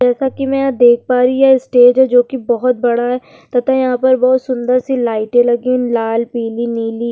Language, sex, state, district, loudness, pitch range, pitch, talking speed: Hindi, female, Uttarakhand, Tehri Garhwal, -13 LUFS, 240-260 Hz, 250 Hz, 230 wpm